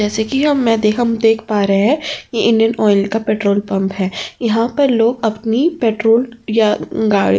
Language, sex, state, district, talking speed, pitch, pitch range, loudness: Hindi, female, Uttar Pradesh, Jyotiba Phule Nagar, 205 wpm, 225 Hz, 210-235 Hz, -15 LUFS